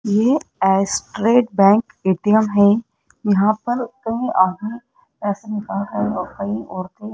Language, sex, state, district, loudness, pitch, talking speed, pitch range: Hindi, female, Rajasthan, Jaipur, -19 LUFS, 210 Hz, 90 wpm, 195-230 Hz